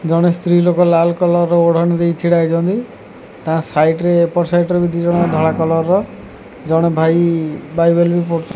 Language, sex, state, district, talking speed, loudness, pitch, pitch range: Odia, male, Odisha, Khordha, 145 wpm, -14 LUFS, 170 Hz, 165-175 Hz